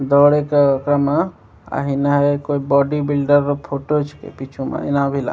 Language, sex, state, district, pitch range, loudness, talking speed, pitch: Maithili, male, Bihar, Begusarai, 140-145 Hz, -18 LUFS, 200 wpm, 145 Hz